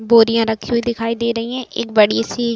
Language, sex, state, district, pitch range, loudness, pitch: Hindi, female, Uttar Pradesh, Budaun, 225-235 Hz, -17 LUFS, 230 Hz